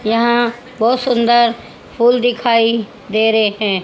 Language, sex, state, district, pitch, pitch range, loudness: Hindi, female, Haryana, Rohtak, 235 Hz, 220-240 Hz, -15 LUFS